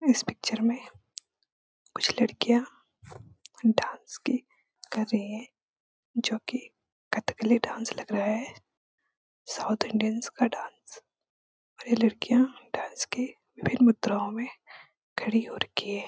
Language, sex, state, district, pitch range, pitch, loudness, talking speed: Hindi, female, Uttarakhand, Uttarkashi, 220-250 Hz, 230 Hz, -29 LUFS, 125 wpm